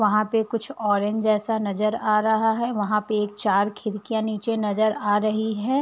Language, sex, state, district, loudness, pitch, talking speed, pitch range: Hindi, female, Uttar Pradesh, Varanasi, -23 LUFS, 215 Hz, 195 wpm, 210-220 Hz